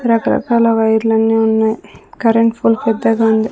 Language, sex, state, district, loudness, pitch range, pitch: Telugu, female, Andhra Pradesh, Sri Satya Sai, -14 LUFS, 220-230 Hz, 225 Hz